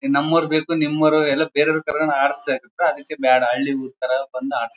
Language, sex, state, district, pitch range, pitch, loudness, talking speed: Kannada, male, Karnataka, Bellary, 130-155 Hz, 140 Hz, -20 LUFS, 175 wpm